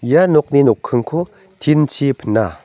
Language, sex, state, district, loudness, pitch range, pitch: Garo, male, Meghalaya, North Garo Hills, -15 LUFS, 120-160 Hz, 145 Hz